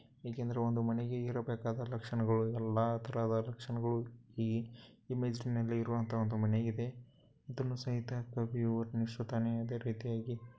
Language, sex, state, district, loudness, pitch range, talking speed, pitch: Kannada, male, Karnataka, Bellary, -37 LUFS, 115-120 Hz, 120 wpm, 115 Hz